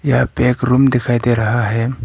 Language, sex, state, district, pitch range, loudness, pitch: Hindi, male, Arunachal Pradesh, Papum Pare, 120-125 Hz, -15 LUFS, 120 Hz